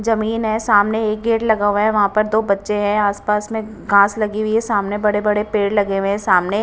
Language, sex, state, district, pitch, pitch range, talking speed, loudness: Hindi, female, Punjab, Kapurthala, 210 Hz, 205-220 Hz, 235 wpm, -17 LUFS